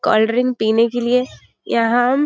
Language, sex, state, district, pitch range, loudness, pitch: Hindi, female, Bihar, Muzaffarpur, 230-250 Hz, -17 LUFS, 240 Hz